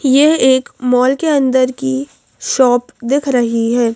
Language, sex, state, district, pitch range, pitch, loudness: Hindi, female, Madhya Pradesh, Bhopal, 245-270 Hz, 260 Hz, -14 LUFS